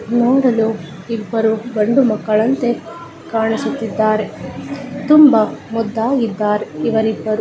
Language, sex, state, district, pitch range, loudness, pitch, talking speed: Kannada, female, Karnataka, Raichur, 215-240 Hz, -16 LUFS, 225 Hz, 65 wpm